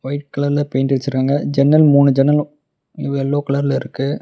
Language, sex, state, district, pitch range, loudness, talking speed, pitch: Tamil, male, Tamil Nadu, Namakkal, 135-145 Hz, -16 LUFS, 140 wpm, 140 Hz